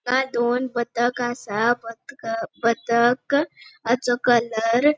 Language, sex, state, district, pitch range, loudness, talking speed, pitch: Konkani, female, Goa, North and South Goa, 235-250 Hz, -22 LUFS, 110 wpm, 240 Hz